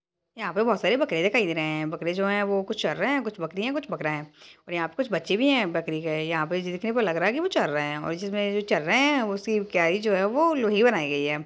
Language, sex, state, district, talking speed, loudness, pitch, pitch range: Hindi, female, Uttarakhand, Uttarkashi, 340 wpm, -25 LUFS, 195 Hz, 165-220 Hz